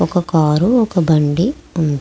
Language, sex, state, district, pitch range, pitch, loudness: Telugu, female, Andhra Pradesh, Krishna, 155-180 Hz, 170 Hz, -15 LUFS